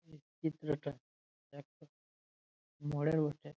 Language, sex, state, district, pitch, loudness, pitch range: Bengali, male, West Bengal, Jalpaiguri, 150 Hz, -38 LUFS, 145-155 Hz